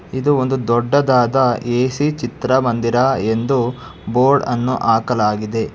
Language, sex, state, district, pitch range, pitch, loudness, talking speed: Kannada, male, Karnataka, Bangalore, 120-135 Hz, 125 Hz, -17 LUFS, 95 wpm